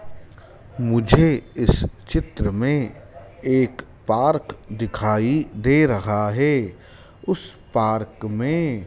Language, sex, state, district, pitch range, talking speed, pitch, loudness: Hindi, male, Madhya Pradesh, Dhar, 105-130 Hz, 90 wpm, 110 Hz, -21 LUFS